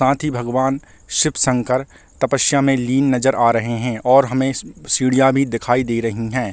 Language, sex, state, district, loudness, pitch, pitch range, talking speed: Hindi, male, Chhattisgarh, Balrampur, -17 LUFS, 130 Hz, 120-135 Hz, 185 wpm